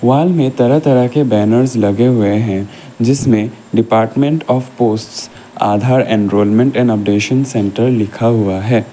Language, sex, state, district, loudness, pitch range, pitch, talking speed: Hindi, male, Assam, Kamrup Metropolitan, -13 LUFS, 105-130 Hz, 115 Hz, 135 wpm